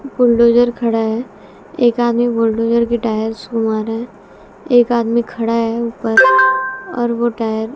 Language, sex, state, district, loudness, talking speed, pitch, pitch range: Hindi, female, Bihar, West Champaran, -15 LUFS, 145 wpm, 235 Hz, 230-240 Hz